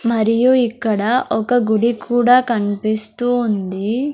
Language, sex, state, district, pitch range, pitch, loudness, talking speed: Telugu, female, Andhra Pradesh, Sri Satya Sai, 215-245 Hz, 230 Hz, -17 LUFS, 100 wpm